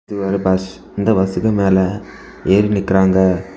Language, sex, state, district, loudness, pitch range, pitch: Tamil, male, Tamil Nadu, Kanyakumari, -16 LUFS, 95-100 Hz, 95 Hz